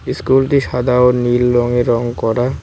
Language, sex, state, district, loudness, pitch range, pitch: Bengali, male, West Bengal, Cooch Behar, -14 LUFS, 120-125 Hz, 125 Hz